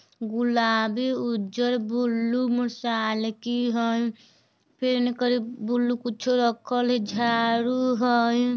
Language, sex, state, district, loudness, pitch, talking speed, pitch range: Bajjika, female, Bihar, Vaishali, -25 LUFS, 240 Hz, 100 wpm, 230-245 Hz